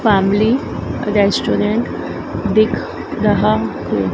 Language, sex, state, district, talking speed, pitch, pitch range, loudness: Hindi, female, Madhya Pradesh, Dhar, 70 wpm, 210 Hz, 200-220 Hz, -17 LUFS